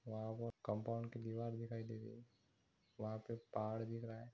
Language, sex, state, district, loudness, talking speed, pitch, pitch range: Hindi, male, Bihar, Lakhisarai, -47 LUFS, 195 wpm, 115 Hz, 110-115 Hz